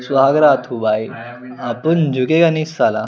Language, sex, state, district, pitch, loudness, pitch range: Hindi, male, Chandigarh, Chandigarh, 130 Hz, -16 LUFS, 120-155 Hz